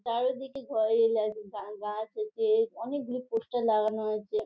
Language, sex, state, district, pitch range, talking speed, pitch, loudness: Bengali, female, West Bengal, Jhargram, 215-265 Hz, 120 wpm, 225 Hz, -30 LUFS